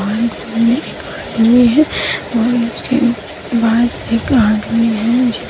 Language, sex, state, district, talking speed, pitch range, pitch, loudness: Hindi, female, Bihar, Kishanganj, 45 wpm, 230-245 Hz, 230 Hz, -14 LUFS